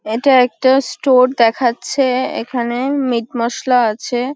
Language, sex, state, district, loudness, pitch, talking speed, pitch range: Bengali, female, West Bengal, Kolkata, -15 LUFS, 250 Hz, 110 wpm, 235-265 Hz